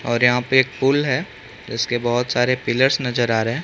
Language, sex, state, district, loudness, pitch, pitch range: Hindi, male, Chhattisgarh, Bilaspur, -19 LUFS, 125 Hz, 120-130 Hz